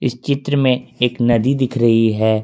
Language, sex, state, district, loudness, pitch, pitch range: Hindi, male, Jharkhand, Ranchi, -16 LUFS, 125 Hz, 115-130 Hz